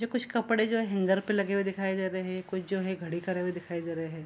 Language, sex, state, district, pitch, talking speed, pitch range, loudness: Hindi, female, Bihar, Kishanganj, 190 Hz, 325 wpm, 180-200 Hz, -31 LUFS